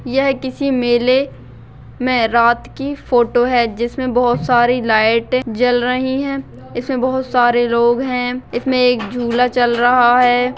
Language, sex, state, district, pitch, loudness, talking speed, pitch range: Hindi, female, Bihar, Bhagalpur, 245 Hz, -15 LUFS, 150 wpm, 240-255 Hz